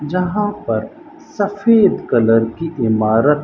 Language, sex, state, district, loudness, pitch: Hindi, male, Rajasthan, Bikaner, -16 LUFS, 180 Hz